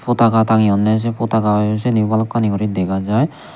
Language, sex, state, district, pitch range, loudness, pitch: Chakma, male, Tripura, Unakoti, 105-115 Hz, -16 LUFS, 110 Hz